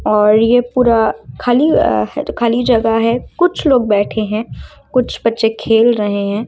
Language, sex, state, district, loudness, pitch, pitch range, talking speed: Hindi, female, Uttar Pradesh, Lucknow, -14 LUFS, 225 Hz, 210-245 Hz, 140 wpm